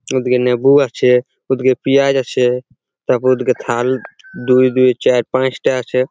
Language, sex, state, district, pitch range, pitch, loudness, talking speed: Bengali, male, West Bengal, Purulia, 125-130 Hz, 130 Hz, -15 LUFS, 145 wpm